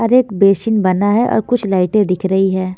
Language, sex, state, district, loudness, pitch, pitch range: Hindi, female, Haryana, Jhajjar, -14 LUFS, 195 Hz, 190-220 Hz